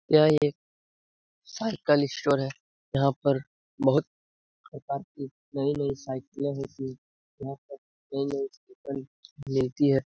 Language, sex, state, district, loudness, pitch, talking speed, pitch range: Hindi, male, Bihar, Jamui, -28 LUFS, 140 Hz, 105 wpm, 135-145 Hz